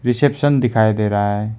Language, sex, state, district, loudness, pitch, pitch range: Hindi, male, West Bengal, Alipurduar, -16 LUFS, 110 Hz, 105-135 Hz